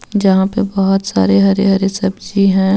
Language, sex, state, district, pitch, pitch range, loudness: Hindi, female, Jharkhand, Ranchi, 195 Hz, 190-200 Hz, -14 LUFS